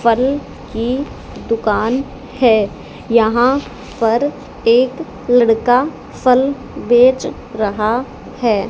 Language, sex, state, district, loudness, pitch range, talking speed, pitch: Hindi, female, Haryana, Charkhi Dadri, -16 LUFS, 225-260 Hz, 85 wpm, 245 Hz